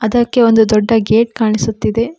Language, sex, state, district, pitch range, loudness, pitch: Kannada, female, Karnataka, Koppal, 220-235 Hz, -13 LUFS, 225 Hz